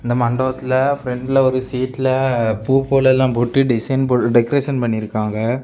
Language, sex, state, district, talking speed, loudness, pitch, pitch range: Tamil, male, Tamil Nadu, Kanyakumari, 140 wpm, -17 LUFS, 130 Hz, 120-130 Hz